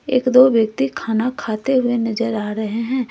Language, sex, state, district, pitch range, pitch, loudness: Hindi, female, Jharkhand, Ranchi, 220-255 Hz, 230 Hz, -18 LUFS